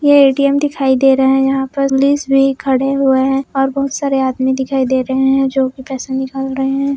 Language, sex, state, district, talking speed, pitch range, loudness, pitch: Hindi, female, Maharashtra, Aurangabad, 230 wpm, 265-275 Hz, -14 LUFS, 270 Hz